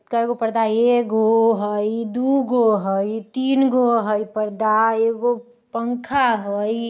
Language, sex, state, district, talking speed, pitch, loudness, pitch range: Bajjika, female, Bihar, Vaishali, 115 wpm, 230 Hz, -19 LUFS, 215-240 Hz